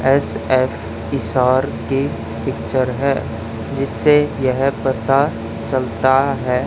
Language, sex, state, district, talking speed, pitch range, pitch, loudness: Hindi, male, Haryana, Charkhi Dadri, 90 wpm, 115-135 Hz, 130 Hz, -18 LUFS